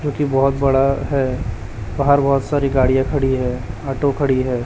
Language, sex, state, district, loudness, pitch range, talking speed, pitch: Hindi, male, Chhattisgarh, Raipur, -18 LUFS, 125-140 Hz, 165 wpm, 135 Hz